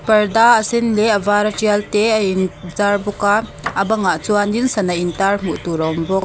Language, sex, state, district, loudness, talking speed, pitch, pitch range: Mizo, female, Mizoram, Aizawl, -16 LUFS, 220 wpm, 205 Hz, 190-215 Hz